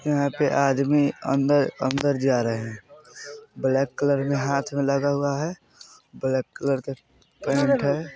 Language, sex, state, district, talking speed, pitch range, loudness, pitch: Bajjika, male, Bihar, Vaishali, 145 wpm, 135-145 Hz, -24 LUFS, 140 Hz